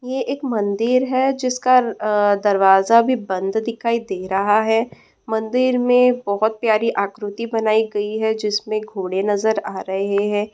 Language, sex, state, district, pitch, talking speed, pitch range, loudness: Hindi, female, West Bengal, Purulia, 220 Hz, 155 wpm, 205-240 Hz, -19 LUFS